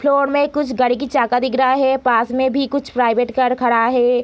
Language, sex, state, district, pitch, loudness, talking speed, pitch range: Hindi, female, Bihar, Gopalganj, 255 Hz, -17 LUFS, 270 wpm, 245-275 Hz